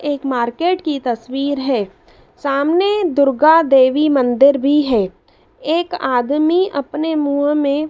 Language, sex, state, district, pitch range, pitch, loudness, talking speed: Hindi, female, Madhya Pradesh, Dhar, 265-310 Hz, 285 Hz, -16 LUFS, 120 wpm